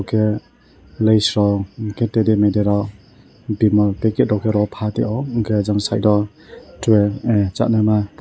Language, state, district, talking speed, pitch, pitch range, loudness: Kokborok, Tripura, West Tripura, 130 wpm, 105 Hz, 105-110 Hz, -18 LUFS